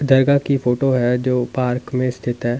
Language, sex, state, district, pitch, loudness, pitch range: Hindi, male, Delhi, New Delhi, 125 Hz, -18 LUFS, 125-135 Hz